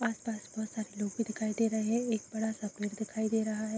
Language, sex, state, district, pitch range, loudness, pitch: Hindi, female, Chhattisgarh, Korba, 215-225 Hz, -34 LUFS, 220 Hz